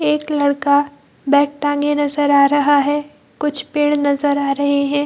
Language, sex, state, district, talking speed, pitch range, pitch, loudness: Hindi, female, Bihar, Gaya, 180 wpm, 285-295 Hz, 290 Hz, -16 LUFS